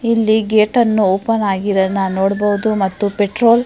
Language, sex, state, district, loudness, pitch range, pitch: Kannada, female, Karnataka, Mysore, -15 LUFS, 195-220 Hz, 205 Hz